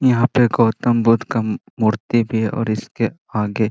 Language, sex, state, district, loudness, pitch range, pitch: Hindi, male, Bihar, Jamui, -18 LUFS, 110-120 Hz, 115 Hz